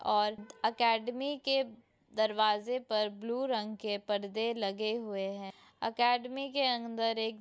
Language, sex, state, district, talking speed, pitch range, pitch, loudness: Hindi, female, Uttarakhand, Tehri Garhwal, 140 wpm, 210-245 Hz, 225 Hz, -33 LUFS